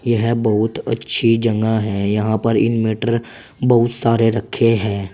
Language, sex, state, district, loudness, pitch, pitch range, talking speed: Hindi, male, Uttar Pradesh, Saharanpur, -17 LUFS, 115 Hz, 110-115 Hz, 140 wpm